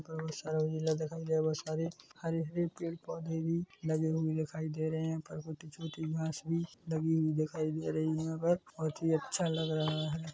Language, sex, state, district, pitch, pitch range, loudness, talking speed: Hindi, male, Chhattisgarh, Korba, 160 Hz, 155-165 Hz, -35 LUFS, 150 wpm